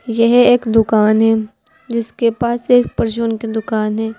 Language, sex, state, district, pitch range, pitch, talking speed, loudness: Hindi, female, Uttar Pradesh, Saharanpur, 220-240 Hz, 225 Hz, 155 wpm, -15 LUFS